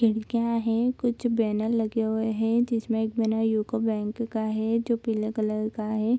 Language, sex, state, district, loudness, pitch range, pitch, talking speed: Hindi, female, Bihar, Bhagalpur, -26 LUFS, 220-230 Hz, 225 Hz, 185 wpm